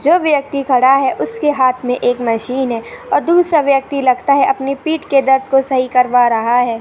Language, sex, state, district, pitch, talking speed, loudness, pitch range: Hindi, female, Maharashtra, Pune, 265 Hz, 210 wpm, -14 LUFS, 250-280 Hz